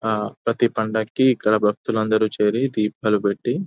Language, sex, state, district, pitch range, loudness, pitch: Telugu, male, Telangana, Nalgonda, 105-115 Hz, -21 LUFS, 110 Hz